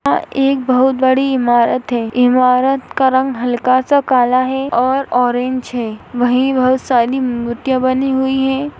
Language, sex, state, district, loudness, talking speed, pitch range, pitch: Hindi, female, Maharashtra, Dhule, -14 LUFS, 155 wpm, 245-265 Hz, 255 Hz